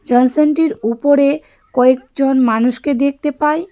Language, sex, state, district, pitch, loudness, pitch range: Bengali, female, West Bengal, Darjeeling, 275 Hz, -15 LUFS, 250-300 Hz